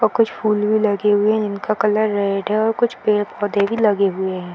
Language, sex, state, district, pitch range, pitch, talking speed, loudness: Hindi, female, Bihar, Jahanabad, 200-215 Hz, 210 Hz, 235 wpm, -18 LUFS